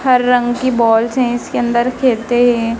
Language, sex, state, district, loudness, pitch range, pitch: Hindi, male, Madhya Pradesh, Dhar, -14 LUFS, 235-250 Hz, 245 Hz